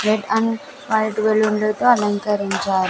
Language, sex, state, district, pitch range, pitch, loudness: Telugu, female, Andhra Pradesh, Sri Satya Sai, 205-220 Hz, 215 Hz, -19 LUFS